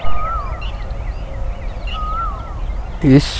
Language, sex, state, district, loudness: Hindi, male, Haryana, Jhajjar, -22 LUFS